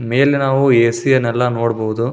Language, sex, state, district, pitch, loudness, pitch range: Kannada, male, Karnataka, Shimoga, 120 Hz, -15 LUFS, 115-135 Hz